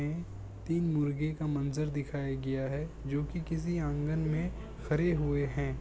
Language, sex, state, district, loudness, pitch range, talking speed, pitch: Hindi, male, Bihar, Kishanganj, -33 LUFS, 140-160 Hz, 145 wpm, 150 Hz